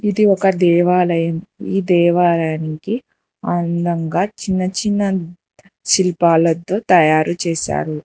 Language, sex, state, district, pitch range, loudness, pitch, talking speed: Telugu, female, Telangana, Hyderabad, 165-195 Hz, -16 LUFS, 175 Hz, 80 wpm